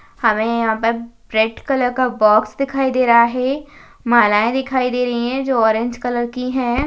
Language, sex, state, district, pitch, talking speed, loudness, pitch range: Hindi, female, Maharashtra, Aurangabad, 240 Hz, 185 wpm, -17 LUFS, 230-255 Hz